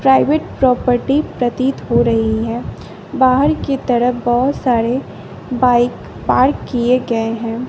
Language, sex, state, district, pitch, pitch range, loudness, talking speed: Hindi, female, Bihar, West Champaran, 250 Hz, 240-265 Hz, -16 LUFS, 125 wpm